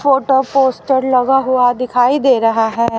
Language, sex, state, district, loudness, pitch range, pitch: Hindi, female, Haryana, Rohtak, -13 LUFS, 245-270 Hz, 260 Hz